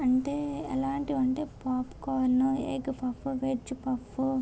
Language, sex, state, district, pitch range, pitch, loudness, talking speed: Telugu, female, Andhra Pradesh, Srikakulam, 255-275 Hz, 265 Hz, -30 LUFS, 120 wpm